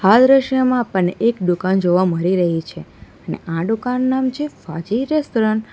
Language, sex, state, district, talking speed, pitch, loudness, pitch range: Gujarati, female, Gujarat, Valsad, 180 wpm, 210 Hz, -18 LUFS, 175-255 Hz